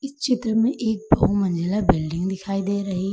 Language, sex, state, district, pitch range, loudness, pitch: Hindi, female, Uttar Pradesh, Lucknow, 190-225 Hz, -22 LUFS, 200 Hz